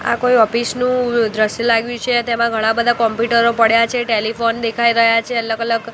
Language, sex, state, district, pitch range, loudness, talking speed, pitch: Gujarati, female, Gujarat, Gandhinagar, 230-235 Hz, -16 LUFS, 190 wpm, 230 Hz